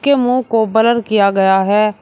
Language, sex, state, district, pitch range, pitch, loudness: Hindi, male, Uttar Pradesh, Shamli, 205-240 Hz, 220 Hz, -13 LUFS